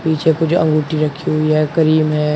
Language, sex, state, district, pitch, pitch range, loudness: Hindi, male, Uttar Pradesh, Shamli, 155 Hz, 155-160 Hz, -15 LUFS